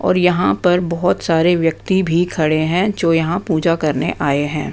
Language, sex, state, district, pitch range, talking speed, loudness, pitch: Hindi, female, Bihar, West Champaran, 160-180 Hz, 190 wpm, -16 LUFS, 170 Hz